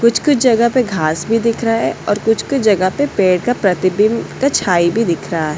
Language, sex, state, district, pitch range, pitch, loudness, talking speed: Hindi, female, Delhi, New Delhi, 185-235 Hz, 220 Hz, -15 LUFS, 215 wpm